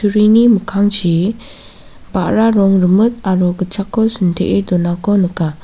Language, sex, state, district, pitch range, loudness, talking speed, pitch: Garo, female, Meghalaya, South Garo Hills, 180-210 Hz, -13 LUFS, 95 wpm, 195 Hz